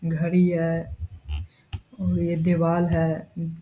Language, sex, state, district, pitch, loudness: Hindi, male, Bihar, Saharsa, 165 Hz, -24 LUFS